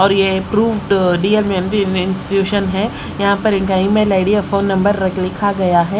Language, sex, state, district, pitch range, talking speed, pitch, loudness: Hindi, female, Odisha, Sambalpur, 190-205 Hz, 190 wpm, 195 Hz, -15 LUFS